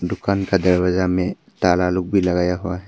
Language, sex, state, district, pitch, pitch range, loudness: Hindi, male, Arunachal Pradesh, Papum Pare, 90 Hz, 90-95 Hz, -19 LUFS